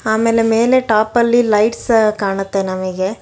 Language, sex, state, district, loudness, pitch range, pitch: Kannada, female, Karnataka, Bangalore, -15 LUFS, 195-230 Hz, 220 Hz